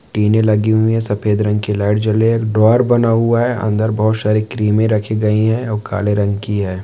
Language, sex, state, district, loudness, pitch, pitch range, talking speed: Hindi, male, West Bengal, Purulia, -15 LUFS, 110 Hz, 105-110 Hz, 230 wpm